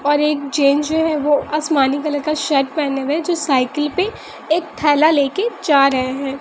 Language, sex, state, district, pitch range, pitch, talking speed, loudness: Hindi, female, Bihar, West Champaran, 275-310 Hz, 295 Hz, 205 wpm, -17 LUFS